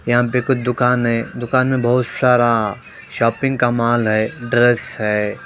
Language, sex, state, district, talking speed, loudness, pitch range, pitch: Hindi, male, Punjab, Pathankot, 165 wpm, -17 LUFS, 115-125 Hz, 120 Hz